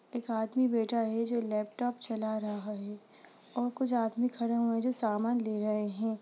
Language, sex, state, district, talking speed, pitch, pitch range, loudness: Hindi, female, Bihar, Sitamarhi, 195 wpm, 230 Hz, 215-240 Hz, -33 LUFS